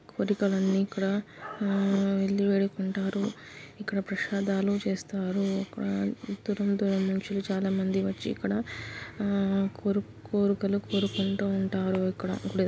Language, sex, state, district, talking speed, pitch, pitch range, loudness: Telugu, female, Telangana, Karimnagar, 110 wpm, 195 Hz, 195-200 Hz, -29 LUFS